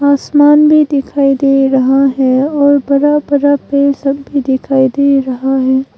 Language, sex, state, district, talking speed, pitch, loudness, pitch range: Hindi, female, Arunachal Pradesh, Longding, 150 wpm, 275 Hz, -11 LUFS, 270-285 Hz